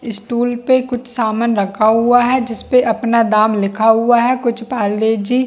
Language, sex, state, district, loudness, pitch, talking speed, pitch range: Hindi, female, Chhattisgarh, Bilaspur, -15 LUFS, 235 Hz, 195 wpm, 220-245 Hz